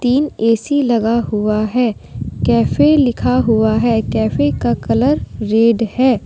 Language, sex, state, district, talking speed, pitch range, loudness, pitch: Hindi, female, Jharkhand, Deoghar, 135 wpm, 210-250 Hz, -15 LUFS, 225 Hz